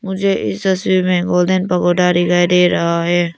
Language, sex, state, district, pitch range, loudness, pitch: Hindi, female, Arunachal Pradesh, Lower Dibang Valley, 175-185 Hz, -15 LUFS, 180 Hz